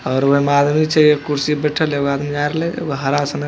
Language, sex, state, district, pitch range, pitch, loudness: Hindi, male, Bihar, Begusarai, 140-150 Hz, 145 Hz, -17 LUFS